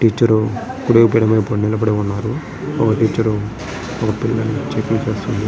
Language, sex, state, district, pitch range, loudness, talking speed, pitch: Telugu, male, Andhra Pradesh, Srikakulam, 105-115 Hz, -17 LUFS, 100 wpm, 110 Hz